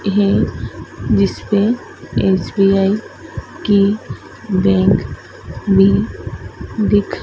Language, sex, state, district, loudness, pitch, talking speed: Hindi, female, Madhya Pradesh, Dhar, -16 LUFS, 190 Hz, 60 wpm